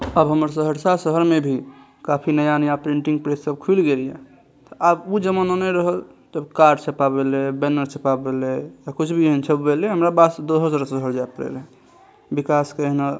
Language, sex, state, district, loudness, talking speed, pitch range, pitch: Maithili, male, Bihar, Saharsa, -20 LUFS, 175 wpm, 140-160 Hz, 150 Hz